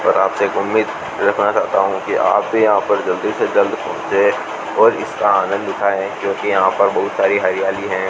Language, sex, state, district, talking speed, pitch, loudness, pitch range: Hindi, male, Rajasthan, Bikaner, 200 wpm, 95 Hz, -16 LUFS, 95-100 Hz